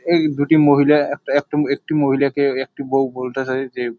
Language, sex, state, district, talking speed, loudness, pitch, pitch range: Bengali, male, West Bengal, Jalpaiguri, 165 wpm, -18 LUFS, 140 Hz, 135-145 Hz